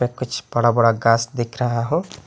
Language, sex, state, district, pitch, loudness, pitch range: Hindi, male, Assam, Hailakandi, 120 Hz, -20 LUFS, 115-125 Hz